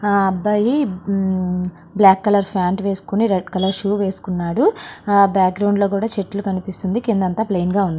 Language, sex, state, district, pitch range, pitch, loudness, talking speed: Telugu, female, Andhra Pradesh, Srikakulam, 185-205 Hz, 195 Hz, -18 LUFS, 155 wpm